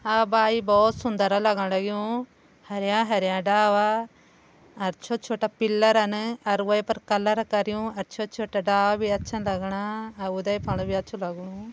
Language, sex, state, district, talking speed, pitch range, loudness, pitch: Garhwali, female, Uttarakhand, Uttarkashi, 160 wpm, 200-220 Hz, -25 LUFS, 210 Hz